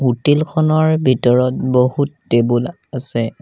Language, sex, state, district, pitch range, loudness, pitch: Assamese, male, Assam, Sonitpur, 120-150 Hz, -16 LUFS, 130 Hz